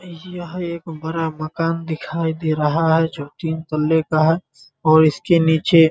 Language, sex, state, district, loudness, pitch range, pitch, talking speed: Hindi, male, Bihar, Muzaffarpur, -19 LUFS, 155-165 Hz, 160 Hz, 170 wpm